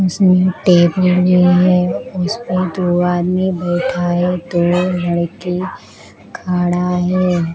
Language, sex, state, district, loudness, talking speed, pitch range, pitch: Hindi, female, Bihar, Katihar, -15 LUFS, 105 wpm, 175-185 Hz, 180 Hz